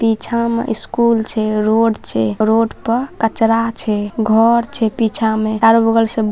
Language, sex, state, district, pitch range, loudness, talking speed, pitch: Maithili, male, Bihar, Saharsa, 220-230 Hz, -15 LUFS, 170 wpm, 225 Hz